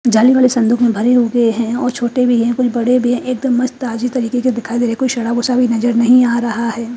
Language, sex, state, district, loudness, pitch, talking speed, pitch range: Hindi, female, Haryana, Charkhi Dadri, -14 LUFS, 240 Hz, 275 wpm, 235-250 Hz